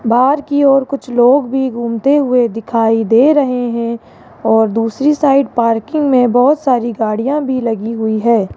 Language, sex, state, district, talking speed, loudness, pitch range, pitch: Hindi, female, Rajasthan, Jaipur, 170 wpm, -13 LUFS, 230-275 Hz, 245 Hz